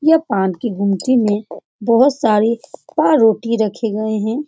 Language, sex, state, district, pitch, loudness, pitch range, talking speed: Hindi, female, Bihar, Supaul, 225 Hz, -16 LUFS, 210-245 Hz, 145 wpm